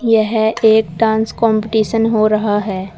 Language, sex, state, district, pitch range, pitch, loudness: Hindi, female, Uttar Pradesh, Saharanpur, 215-225 Hz, 220 Hz, -14 LUFS